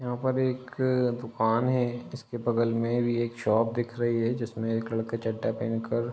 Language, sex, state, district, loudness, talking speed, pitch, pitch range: Hindi, male, Uttar Pradesh, Ghazipur, -28 LUFS, 215 wpm, 120 Hz, 115-120 Hz